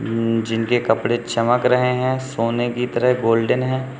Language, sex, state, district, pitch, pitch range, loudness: Hindi, male, Uttar Pradesh, Lucknow, 120 Hz, 115-125 Hz, -19 LUFS